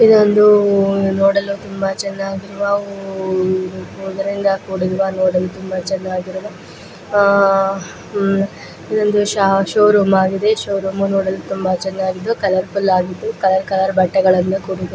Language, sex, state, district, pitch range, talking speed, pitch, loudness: Kannada, female, Karnataka, Raichur, 190-200 Hz, 105 wpm, 195 Hz, -16 LUFS